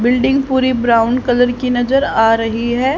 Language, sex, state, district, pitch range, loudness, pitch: Hindi, female, Haryana, Charkhi Dadri, 235-260 Hz, -14 LUFS, 245 Hz